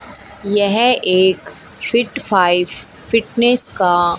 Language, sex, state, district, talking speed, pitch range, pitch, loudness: Hindi, female, Haryana, Jhajjar, 85 wpm, 185-235 Hz, 205 Hz, -14 LUFS